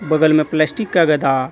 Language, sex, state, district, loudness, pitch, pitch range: Hindi, male, Jharkhand, Deoghar, -16 LUFS, 155 Hz, 150-160 Hz